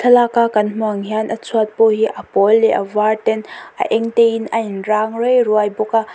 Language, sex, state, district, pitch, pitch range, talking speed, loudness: Mizo, female, Mizoram, Aizawl, 220 Hz, 215-225 Hz, 265 wpm, -16 LUFS